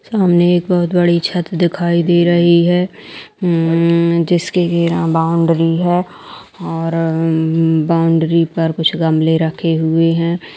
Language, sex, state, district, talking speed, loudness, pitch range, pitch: Hindi, female, Uttar Pradesh, Jalaun, 130 wpm, -14 LUFS, 165-175 Hz, 170 Hz